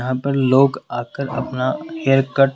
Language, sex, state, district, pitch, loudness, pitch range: Hindi, male, Rajasthan, Jaipur, 135 Hz, -19 LUFS, 130-140 Hz